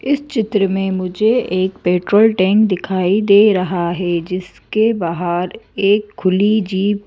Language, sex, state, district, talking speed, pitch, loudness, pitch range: Hindi, female, Madhya Pradesh, Bhopal, 145 wpm, 195 Hz, -16 LUFS, 185-210 Hz